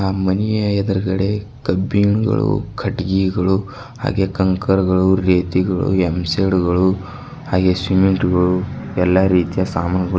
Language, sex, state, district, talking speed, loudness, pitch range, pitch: Kannada, male, Karnataka, Bidar, 110 wpm, -17 LUFS, 90-100 Hz, 95 Hz